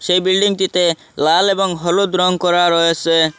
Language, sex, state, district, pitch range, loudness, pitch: Bengali, male, Assam, Hailakandi, 170-190 Hz, -15 LUFS, 180 Hz